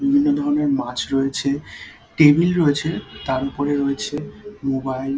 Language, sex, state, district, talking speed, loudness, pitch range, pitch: Bengali, male, West Bengal, Dakshin Dinajpur, 125 wpm, -20 LUFS, 135-195 Hz, 145 Hz